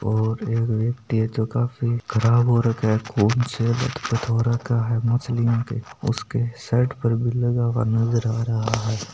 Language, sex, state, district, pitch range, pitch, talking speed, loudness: Hindi, male, Rajasthan, Nagaur, 115-120 Hz, 115 Hz, 125 wpm, -22 LUFS